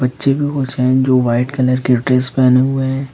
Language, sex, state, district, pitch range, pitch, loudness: Hindi, male, Uttar Pradesh, Lucknow, 125-135 Hz, 130 Hz, -14 LUFS